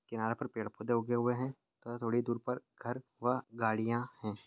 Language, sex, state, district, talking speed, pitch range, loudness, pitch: Hindi, male, Chhattisgarh, Bastar, 190 wpm, 115-125 Hz, -36 LUFS, 120 Hz